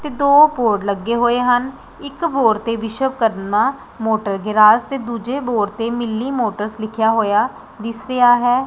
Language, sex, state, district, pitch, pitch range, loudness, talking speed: Punjabi, female, Punjab, Pathankot, 230 Hz, 220-255 Hz, -17 LUFS, 160 wpm